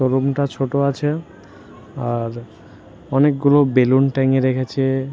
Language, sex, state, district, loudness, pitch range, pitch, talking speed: Bengali, male, West Bengal, Jhargram, -18 LUFS, 130-140 Hz, 135 Hz, 105 wpm